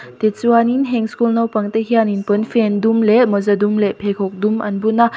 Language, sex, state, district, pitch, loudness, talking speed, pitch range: Mizo, female, Mizoram, Aizawl, 215 Hz, -16 LUFS, 185 wpm, 205-230 Hz